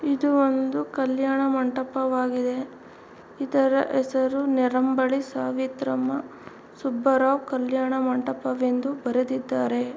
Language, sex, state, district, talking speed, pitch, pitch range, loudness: Kannada, female, Karnataka, Mysore, 80 wpm, 260 Hz, 255-270 Hz, -24 LUFS